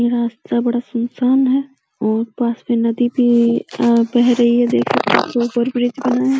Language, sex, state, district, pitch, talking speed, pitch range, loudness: Hindi, female, Uttar Pradesh, Deoria, 240 Hz, 180 wpm, 235-250 Hz, -16 LUFS